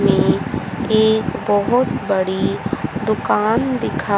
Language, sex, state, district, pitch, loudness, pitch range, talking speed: Hindi, female, Haryana, Charkhi Dadri, 210 Hz, -18 LUFS, 195-225 Hz, 100 wpm